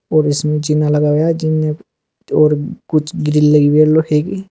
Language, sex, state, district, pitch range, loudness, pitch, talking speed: Hindi, male, Uttar Pradesh, Saharanpur, 150-155 Hz, -14 LUFS, 150 Hz, 175 wpm